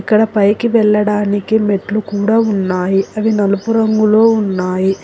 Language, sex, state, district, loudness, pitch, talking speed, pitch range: Telugu, female, Telangana, Hyderabad, -14 LUFS, 210 Hz, 120 wpm, 200-220 Hz